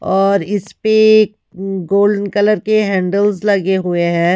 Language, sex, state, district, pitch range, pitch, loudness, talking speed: Hindi, female, Haryana, Rohtak, 190-210 Hz, 200 Hz, -14 LUFS, 135 wpm